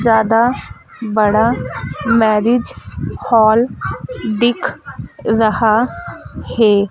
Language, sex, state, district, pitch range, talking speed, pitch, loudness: Hindi, female, Madhya Pradesh, Dhar, 215-235 Hz, 60 wpm, 225 Hz, -15 LUFS